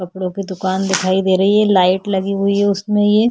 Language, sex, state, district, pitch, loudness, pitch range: Hindi, female, Chhattisgarh, Kabirdham, 195 Hz, -16 LUFS, 185-200 Hz